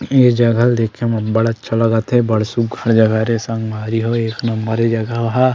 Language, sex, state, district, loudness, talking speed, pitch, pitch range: Chhattisgarhi, male, Chhattisgarh, Sukma, -16 LUFS, 195 wpm, 115 Hz, 110-115 Hz